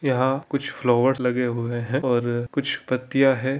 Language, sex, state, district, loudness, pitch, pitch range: Hindi, male, Andhra Pradesh, Anantapur, -23 LUFS, 130 Hz, 120-135 Hz